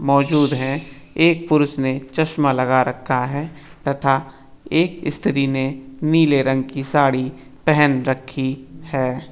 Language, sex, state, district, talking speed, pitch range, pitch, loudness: Hindi, male, Maharashtra, Nagpur, 130 wpm, 135-150 Hz, 140 Hz, -19 LUFS